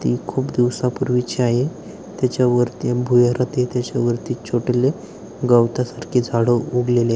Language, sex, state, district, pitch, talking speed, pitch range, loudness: Marathi, male, Maharashtra, Aurangabad, 125 Hz, 115 wpm, 120-125 Hz, -19 LUFS